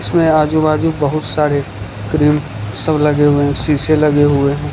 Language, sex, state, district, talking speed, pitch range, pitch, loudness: Hindi, male, Gujarat, Valsad, 175 wpm, 140-155 Hz, 150 Hz, -14 LUFS